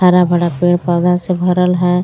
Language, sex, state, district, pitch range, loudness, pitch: Hindi, female, Jharkhand, Garhwa, 175-180 Hz, -14 LUFS, 180 Hz